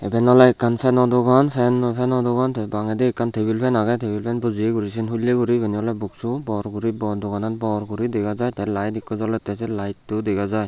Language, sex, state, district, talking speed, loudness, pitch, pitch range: Chakma, male, Tripura, Unakoti, 220 wpm, -21 LUFS, 115 Hz, 105-120 Hz